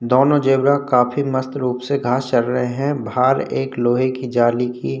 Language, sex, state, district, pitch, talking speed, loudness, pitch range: Hindi, male, Uttar Pradesh, Hamirpur, 125 Hz, 205 wpm, -18 LUFS, 125-135 Hz